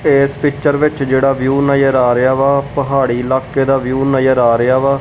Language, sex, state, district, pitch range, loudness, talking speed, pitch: Punjabi, male, Punjab, Kapurthala, 130-140 Hz, -13 LUFS, 215 wpm, 135 Hz